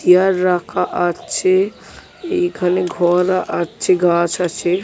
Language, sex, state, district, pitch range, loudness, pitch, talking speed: Bengali, male, West Bengal, Jhargram, 175-195 Hz, -17 LUFS, 180 Hz, 110 wpm